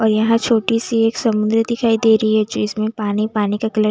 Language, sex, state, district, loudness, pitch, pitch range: Hindi, female, Bihar, West Champaran, -17 LUFS, 220 Hz, 215-230 Hz